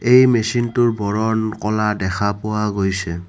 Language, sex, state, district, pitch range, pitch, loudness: Assamese, male, Assam, Kamrup Metropolitan, 100-115 Hz, 105 Hz, -18 LUFS